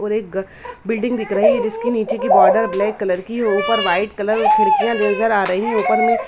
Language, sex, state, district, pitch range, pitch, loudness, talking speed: Hindi, female, Bihar, Samastipur, 205-235 Hz, 220 Hz, -17 LUFS, 230 wpm